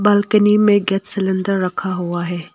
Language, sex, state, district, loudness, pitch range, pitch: Hindi, female, Arunachal Pradesh, Longding, -17 LUFS, 180-205 Hz, 195 Hz